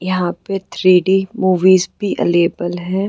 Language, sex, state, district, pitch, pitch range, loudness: Hindi, female, Uttar Pradesh, Gorakhpur, 185 Hz, 180-190 Hz, -15 LUFS